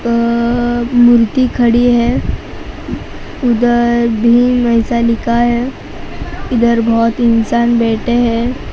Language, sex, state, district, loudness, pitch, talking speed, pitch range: Hindi, female, Maharashtra, Mumbai Suburban, -12 LUFS, 235 Hz, 95 wpm, 235-240 Hz